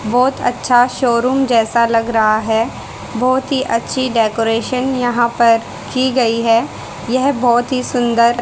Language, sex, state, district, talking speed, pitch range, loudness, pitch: Hindi, female, Haryana, Rohtak, 140 wpm, 230-255 Hz, -15 LUFS, 240 Hz